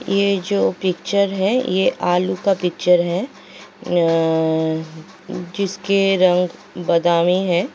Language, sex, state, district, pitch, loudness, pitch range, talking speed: Hindi, female, Uttar Pradesh, Jalaun, 180 Hz, -18 LUFS, 170-190 Hz, 110 wpm